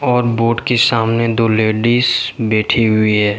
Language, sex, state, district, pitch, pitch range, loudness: Hindi, male, Jharkhand, Deoghar, 115 Hz, 110-120 Hz, -14 LUFS